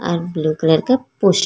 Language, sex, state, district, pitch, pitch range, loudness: Hindi, female, Chhattisgarh, Korba, 170 Hz, 160-195 Hz, -17 LUFS